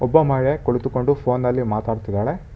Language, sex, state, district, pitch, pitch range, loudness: Kannada, male, Karnataka, Bangalore, 125 Hz, 115-140 Hz, -20 LUFS